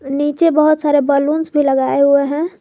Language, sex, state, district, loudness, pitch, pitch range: Hindi, female, Jharkhand, Garhwa, -14 LUFS, 290 Hz, 280-305 Hz